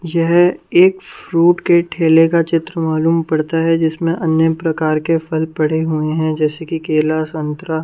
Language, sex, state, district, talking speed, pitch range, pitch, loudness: Hindi, female, Punjab, Kapurthala, 170 wpm, 155-165 Hz, 160 Hz, -15 LUFS